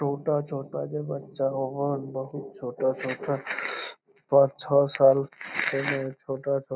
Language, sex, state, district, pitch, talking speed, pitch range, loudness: Magahi, male, Bihar, Lakhisarai, 140 Hz, 105 wpm, 135-145 Hz, -27 LUFS